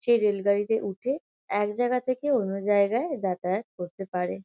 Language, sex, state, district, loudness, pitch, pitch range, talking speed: Bengali, female, West Bengal, Kolkata, -27 LUFS, 205 Hz, 195-240 Hz, 150 wpm